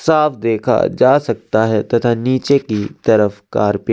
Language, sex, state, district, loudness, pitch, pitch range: Hindi, male, Chhattisgarh, Sukma, -15 LUFS, 115 Hz, 105-130 Hz